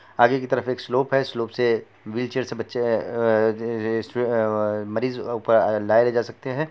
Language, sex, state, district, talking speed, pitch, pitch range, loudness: Bhojpuri, male, Bihar, Saran, 190 wpm, 115 Hz, 110-125 Hz, -23 LUFS